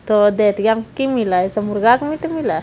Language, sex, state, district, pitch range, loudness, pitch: Hindi, female, Bihar, Jamui, 205-265 Hz, -17 LUFS, 220 Hz